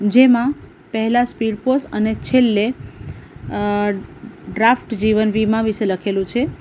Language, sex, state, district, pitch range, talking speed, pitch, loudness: Gujarati, female, Gujarat, Valsad, 210-245 Hz, 110 wpm, 220 Hz, -18 LUFS